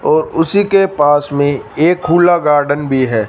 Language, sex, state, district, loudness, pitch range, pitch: Hindi, male, Punjab, Fazilka, -13 LUFS, 145-180 Hz, 150 Hz